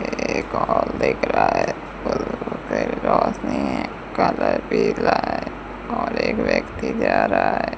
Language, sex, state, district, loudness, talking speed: Hindi, female, Rajasthan, Bikaner, -21 LUFS, 95 wpm